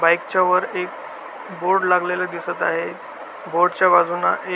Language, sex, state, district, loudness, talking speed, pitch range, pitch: Marathi, male, Maharashtra, Solapur, -20 LUFS, 145 wpm, 175-185 Hz, 180 Hz